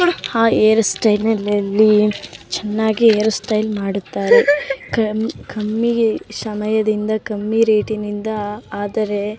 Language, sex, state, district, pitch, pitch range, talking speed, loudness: Kannada, female, Karnataka, Mysore, 215 Hz, 210-225 Hz, 70 wpm, -17 LUFS